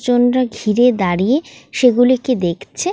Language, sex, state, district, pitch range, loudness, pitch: Bengali, female, West Bengal, North 24 Parganas, 215-255 Hz, -15 LUFS, 245 Hz